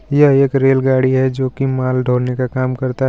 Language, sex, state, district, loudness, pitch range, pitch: Hindi, female, Jharkhand, Garhwa, -15 LUFS, 130-135 Hz, 130 Hz